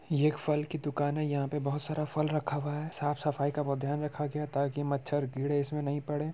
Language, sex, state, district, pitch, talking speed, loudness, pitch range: Hindi, male, Bihar, Muzaffarpur, 145 Hz, 255 wpm, -32 LUFS, 145-150 Hz